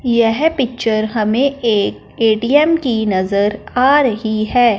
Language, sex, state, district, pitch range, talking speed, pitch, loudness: Hindi, female, Punjab, Fazilka, 215-260 Hz, 125 wpm, 230 Hz, -15 LUFS